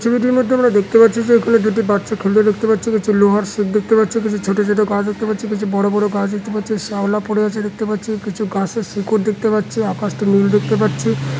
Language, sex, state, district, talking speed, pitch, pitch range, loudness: Bengali, male, West Bengal, Dakshin Dinajpur, 225 wpm, 210 Hz, 205-220 Hz, -16 LUFS